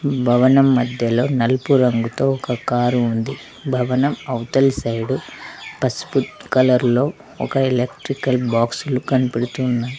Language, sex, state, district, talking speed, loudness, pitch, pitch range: Telugu, female, Telangana, Mahabubabad, 115 wpm, -19 LUFS, 125 Hz, 120-135 Hz